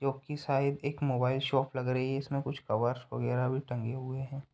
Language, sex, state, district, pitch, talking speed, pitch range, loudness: Hindi, male, Uttar Pradesh, Ghazipur, 135 Hz, 225 wpm, 125-140 Hz, -33 LUFS